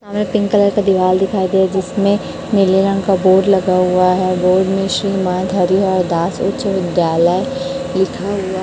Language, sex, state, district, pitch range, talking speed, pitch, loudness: Hindi, female, Chhattisgarh, Raipur, 185-195 Hz, 165 wpm, 190 Hz, -15 LUFS